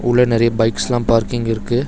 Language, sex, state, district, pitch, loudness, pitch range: Tamil, male, Tamil Nadu, Chennai, 120 Hz, -16 LUFS, 115-120 Hz